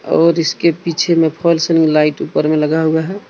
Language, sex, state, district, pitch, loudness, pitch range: Hindi, male, Jharkhand, Deoghar, 165 Hz, -14 LUFS, 160-170 Hz